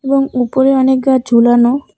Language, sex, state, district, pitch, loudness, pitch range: Bengali, female, West Bengal, Cooch Behar, 260 Hz, -12 LUFS, 240-270 Hz